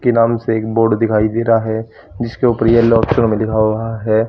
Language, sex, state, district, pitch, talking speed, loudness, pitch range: Hindi, female, Haryana, Charkhi Dadri, 115 Hz, 235 wpm, -15 LUFS, 110-115 Hz